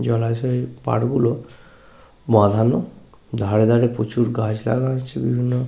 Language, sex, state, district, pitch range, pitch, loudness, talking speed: Bengali, male, West Bengal, Paschim Medinipur, 110-125 Hz, 120 Hz, -20 LUFS, 115 wpm